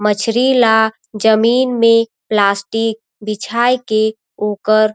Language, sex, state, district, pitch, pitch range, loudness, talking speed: Surgujia, female, Chhattisgarh, Sarguja, 220 Hz, 215-230 Hz, -15 LUFS, 95 wpm